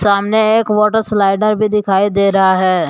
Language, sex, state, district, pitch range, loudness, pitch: Hindi, male, Jharkhand, Deoghar, 195-215 Hz, -13 LUFS, 205 Hz